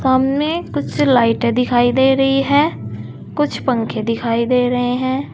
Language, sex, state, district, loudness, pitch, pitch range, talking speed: Hindi, female, Uttar Pradesh, Saharanpur, -16 LUFS, 255 Hz, 240-270 Hz, 145 wpm